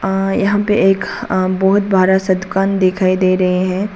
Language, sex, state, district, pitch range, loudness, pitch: Hindi, female, Arunachal Pradesh, Papum Pare, 185-195 Hz, -15 LUFS, 190 Hz